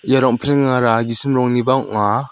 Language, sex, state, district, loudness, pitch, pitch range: Garo, male, Meghalaya, South Garo Hills, -16 LUFS, 125 Hz, 115-135 Hz